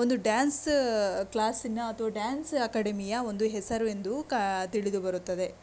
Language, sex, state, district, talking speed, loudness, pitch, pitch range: Kannada, female, Karnataka, Shimoga, 95 wpm, -30 LUFS, 220 Hz, 205-245 Hz